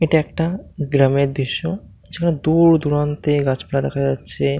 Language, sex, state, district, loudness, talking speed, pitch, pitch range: Bengali, male, West Bengal, Malda, -19 LUFS, 130 wpm, 145 Hz, 135-165 Hz